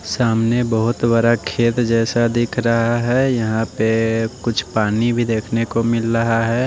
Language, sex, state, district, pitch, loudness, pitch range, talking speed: Hindi, male, Odisha, Nuapada, 115 Hz, -18 LUFS, 115-120 Hz, 160 wpm